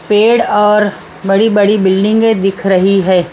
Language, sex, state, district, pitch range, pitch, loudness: Hindi, female, Maharashtra, Mumbai Suburban, 195-210 Hz, 205 Hz, -11 LUFS